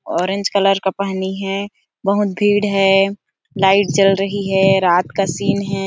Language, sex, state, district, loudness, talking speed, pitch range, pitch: Hindi, female, Chhattisgarh, Sarguja, -16 LUFS, 175 wpm, 195-200 Hz, 195 Hz